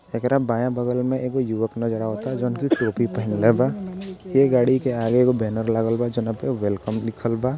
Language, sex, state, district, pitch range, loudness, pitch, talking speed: Bhojpuri, male, Bihar, Gopalganj, 115-130 Hz, -22 LUFS, 120 Hz, 205 wpm